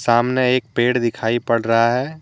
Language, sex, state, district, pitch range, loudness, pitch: Hindi, male, Jharkhand, Deoghar, 115-125 Hz, -18 LUFS, 120 Hz